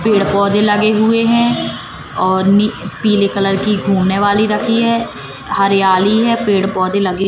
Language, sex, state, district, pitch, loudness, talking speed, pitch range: Hindi, female, Madhya Pradesh, Katni, 200 Hz, -14 LUFS, 155 wpm, 195-215 Hz